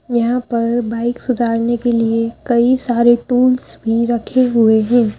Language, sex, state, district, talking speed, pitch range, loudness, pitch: Hindi, female, Madhya Pradesh, Bhopal, 150 wpm, 230-245 Hz, -15 LUFS, 235 Hz